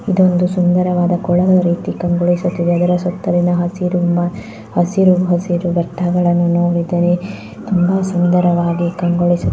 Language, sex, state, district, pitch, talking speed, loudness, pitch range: Kannada, female, Karnataka, Dharwad, 175 Hz, 95 wpm, -15 LUFS, 175-180 Hz